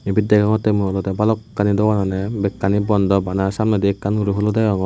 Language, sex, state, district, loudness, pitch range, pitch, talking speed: Chakma, male, Tripura, West Tripura, -18 LUFS, 100-105 Hz, 105 Hz, 185 wpm